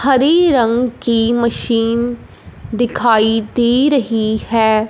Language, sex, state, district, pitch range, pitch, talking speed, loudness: Hindi, female, Punjab, Fazilka, 225-245 Hz, 235 Hz, 100 wpm, -14 LUFS